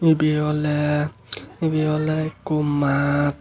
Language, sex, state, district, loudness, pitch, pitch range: Chakma, male, Tripura, Unakoti, -22 LUFS, 150 Hz, 145-155 Hz